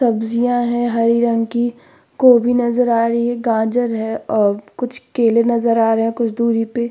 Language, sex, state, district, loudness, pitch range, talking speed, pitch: Hindi, female, Uttar Pradesh, Muzaffarnagar, -17 LUFS, 225-240 Hz, 175 wpm, 235 Hz